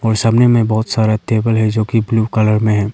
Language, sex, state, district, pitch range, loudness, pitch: Hindi, male, Arunachal Pradesh, Lower Dibang Valley, 110-115 Hz, -14 LUFS, 110 Hz